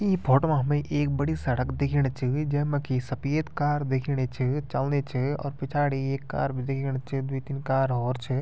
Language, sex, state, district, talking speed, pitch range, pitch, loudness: Garhwali, male, Uttarakhand, Tehri Garhwal, 205 wpm, 130-145 Hz, 135 Hz, -27 LUFS